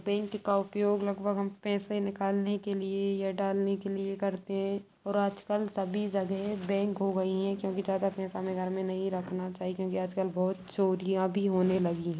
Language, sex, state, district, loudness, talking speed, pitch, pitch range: Hindi, female, Bihar, Sitamarhi, -32 LUFS, 210 wpm, 195 Hz, 190-200 Hz